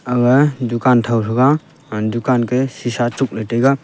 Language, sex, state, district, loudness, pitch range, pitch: Wancho, male, Arunachal Pradesh, Longding, -16 LUFS, 120-135 Hz, 125 Hz